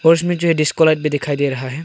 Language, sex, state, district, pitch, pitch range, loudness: Hindi, male, Arunachal Pradesh, Longding, 155 Hz, 145-165 Hz, -17 LUFS